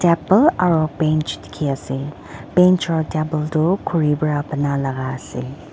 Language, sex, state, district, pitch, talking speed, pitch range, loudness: Nagamese, female, Nagaland, Dimapur, 155 Hz, 125 wpm, 140-170 Hz, -19 LUFS